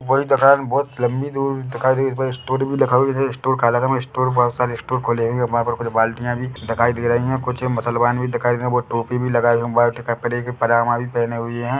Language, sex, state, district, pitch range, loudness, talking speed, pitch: Hindi, male, Chhattisgarh, Bilaspur, 120-130 Hz, -19 LUFS, 240 wpm, 125 Hz